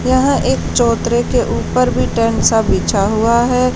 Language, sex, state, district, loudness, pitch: Hindi, female, Haryana, Charkhi Dadri, -14 LUFS, 200 Hz